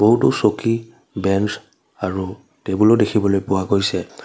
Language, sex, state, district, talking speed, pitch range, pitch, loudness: Assamese, male, Assam, Kamrup Metropolitan, 115 wpm, 95-110 Hz, 100 Hz, -19 LUFS